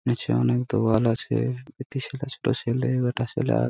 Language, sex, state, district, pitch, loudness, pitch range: Bengali, male, West Bengal, Purulia, 125 Hz, -25 LUFS, 115-130 Hz